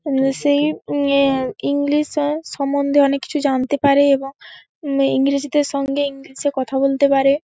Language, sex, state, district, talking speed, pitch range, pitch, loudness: Bengali, female, West Bengal, Paschim Medinipur, 160 wpm, 275-285 Hz, 280 Hz, -18 LUFS